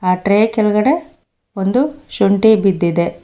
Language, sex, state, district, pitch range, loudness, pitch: Kannada, female, Karnataka, Bangalore, 195-240 Hz, -15 LUFS, 210 Hz